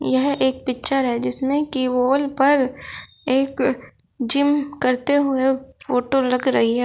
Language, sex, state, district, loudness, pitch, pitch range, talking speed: Hindi, male, Uttar Pradesh, Shamli, -19 LUFS, 265 Hz, 255-275 Hz, 140 wpm